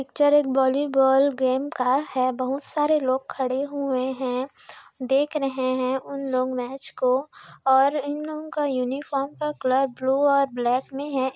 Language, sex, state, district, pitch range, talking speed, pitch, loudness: Hindi, female, Chhattisgarh, Raigarh, 255-285 Hz, 165 wpm, 270 Hz, -24 LUFS